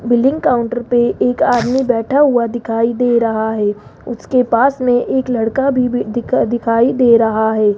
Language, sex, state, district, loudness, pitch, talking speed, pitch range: Hindi, female, Rajasthan, Jaipur, -14 LUFS, 240 Hz, 170 wpm, 230-250 Hz